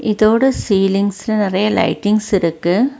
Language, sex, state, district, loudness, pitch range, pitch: Tamil, female, Tamil Nadu, Nilgiris, -15 LUFS, 195-220 Hz, 210 Hz